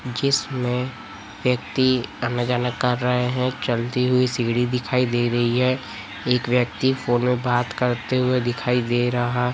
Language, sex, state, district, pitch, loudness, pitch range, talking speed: Hindi, male, Chhattisgarh, Raipur, 125 Hz, -22 LUFS, 120-125 Hz, 150 wpm